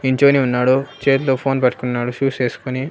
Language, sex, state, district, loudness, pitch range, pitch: Telugu, male, Andhra Pradesh, Annamaya, -18 LUFS, 125-135 Hz, 130 Hz